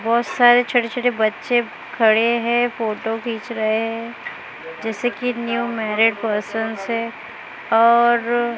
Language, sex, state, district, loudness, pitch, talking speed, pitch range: Hindi, male, Maharashtra, Mumbai Suburban, -19 LUFS, 230 Hz, 125 wpm, 225-240 Hz